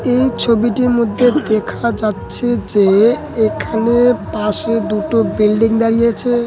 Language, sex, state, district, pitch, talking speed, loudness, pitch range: Bengali, male, West Bengal, Dakshin Dinajpur, 230 Hz, 120 wpm, -14 LUFS, 215-240 Hz